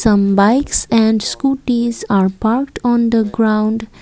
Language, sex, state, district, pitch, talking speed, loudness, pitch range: English, female, Assam, Kamrup Metropolitan, 225 Hz, 135 wpm, -15 LUFS, 215-240 Hz